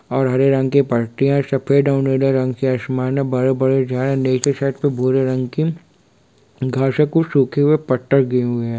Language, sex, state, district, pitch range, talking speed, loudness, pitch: Hindi, male, Bihar, Sitamarhi, 130-140 Hz, 200 wpm, -17 LUFS, 135 Hz